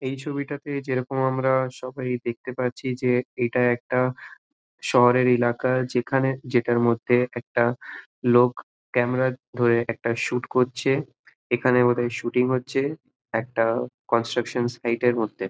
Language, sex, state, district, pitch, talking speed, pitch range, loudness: Bengali, male, West Bengal, Malda, 125 Hz, 125 wpm, 120-130 Hz, -24 LUFS